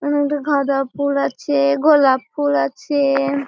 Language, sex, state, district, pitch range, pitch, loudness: Bengali, female, West Bengal, Malda, 275-285 Hz, 280 Hz, -17 LUFS